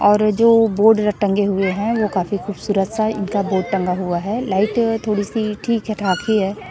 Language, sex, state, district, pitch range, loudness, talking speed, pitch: Hindi, female, Chhattisgarh, Raipur, 195-220 Hz, -18 LUFS, 225 wpm, 205 Hz